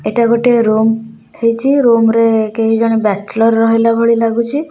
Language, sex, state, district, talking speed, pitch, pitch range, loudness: Odia, female, Odisha, Khordha, 155 wpm, 230 Hz, 225-235 Hz, -12 LUFS